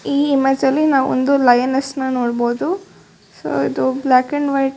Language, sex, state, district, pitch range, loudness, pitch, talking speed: Kannada, female, Karnataka, Shimoga, 255-280 Hz, -17 LUFS, 270 Hz, 190 wpm